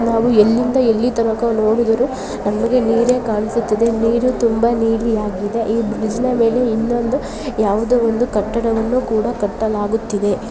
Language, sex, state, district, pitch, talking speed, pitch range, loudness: Kannada, female, Karnataka, Gulbarga, 230 Hz, 120 wpm, 220-240 Hz, -17 LUFS